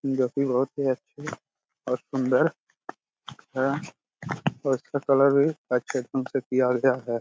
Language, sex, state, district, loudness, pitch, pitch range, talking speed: Hindi, male, Jharkhand, Jamtara, -26 LUFS, 130 Hz, 125-140 Hz, 140 wpm